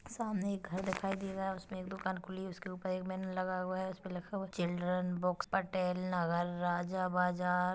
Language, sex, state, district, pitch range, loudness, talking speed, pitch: Hindi, female, Chhattisgarh, Kabirdham, 180-190 Hz, -37 LUFS, 215 wpm, 185 Hz